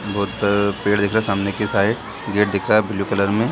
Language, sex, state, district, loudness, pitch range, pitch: Hindi, male, Bihar, Saran, -19 LUFS, 100-105 Hz, 100 Hz